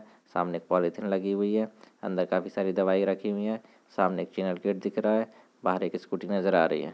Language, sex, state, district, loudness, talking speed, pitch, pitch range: Hindi, male, Chhattisgarh, Rajnandgaon, -29 LUFS, 235 wpm, 100 Hz, 95-110 Hz